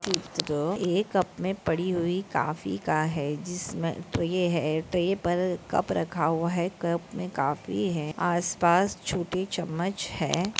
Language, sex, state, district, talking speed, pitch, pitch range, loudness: Hindi, female, Maharashtra, Dhule, 145 wpm, 175 Hz, 165-185 Hz, -28 LUFS